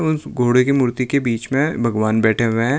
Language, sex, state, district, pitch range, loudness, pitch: Hindi, male, Uttar Pradesh, Lucknow, 115-140 Hz, -18 LUFS, 125 Hz